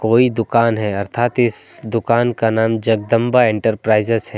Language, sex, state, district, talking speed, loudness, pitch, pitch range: Hindi, male, Jharkhand, Deoghar, 150 wpm, -16 LUFS, 115 Hz, 110-120 Hz